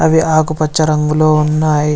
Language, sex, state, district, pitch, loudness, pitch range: Telugu, male, Andhra Pradesh, Visakhapatnam, 155 Hz, -13 LUFS, 150-155 Hz